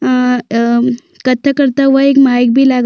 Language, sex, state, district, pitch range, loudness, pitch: Hindi, female, Chhattisgarh, Sukma, 245-275 Hz, -11 LUFS, 255 Hz